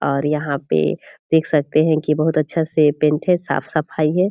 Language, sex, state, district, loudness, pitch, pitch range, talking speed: Hindi, female, Bihar, Purnia, -18 LUFS, 155 Hz, 150-160 Hz, 210 wpm